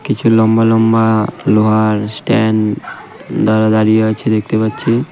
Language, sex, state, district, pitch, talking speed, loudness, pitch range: Bengali, male, West Bengal, Cooch Behar, 110 Hz, 130 wpm, -13 LUFS, 110-115 Hz